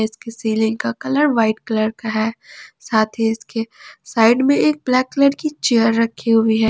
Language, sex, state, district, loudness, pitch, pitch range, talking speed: Hindi, female, Jharkhand, Palamu, -18 LUFS, 225 Hz, 220-255 Hz, 190 wpm